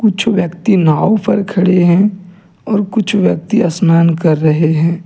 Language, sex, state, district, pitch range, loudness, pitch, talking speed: Hindi, male, Jharkhand, Deoghar, 165-205 Hz, -12 LUFS, 185 Hz, 155 wpm